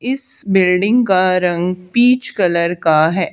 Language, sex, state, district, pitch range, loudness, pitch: Hindi, male, Haryana, Charkhi Dadri, 175-240 Hz, -14 LUFS, 185 Hz